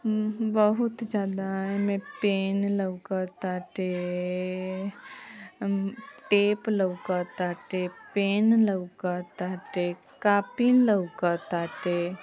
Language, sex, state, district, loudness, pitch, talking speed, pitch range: Bhojpuri, female, Uttar Pradesh, Ghazipur, -27 LUFS, 195 Hz, 65 wpm, 180-205 Hz